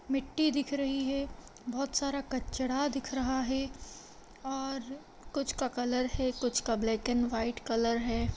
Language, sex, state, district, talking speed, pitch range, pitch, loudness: Hindi, female, Bihar, Madhepura, 160 wpm, 245-275 Hz, 260 Hz, -33 LUFS